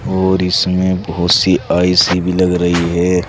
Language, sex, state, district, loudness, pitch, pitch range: Hindi, male, Uttar Pradesh, Saharanpur, -13 LUFS, 90 Hz, 90-95 Hz